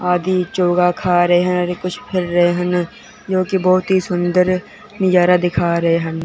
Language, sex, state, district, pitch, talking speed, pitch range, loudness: Hindi, male, Punjab, Fazilka, 180 Hz, 175 wpm, 175-185 Hz, -16 LUFS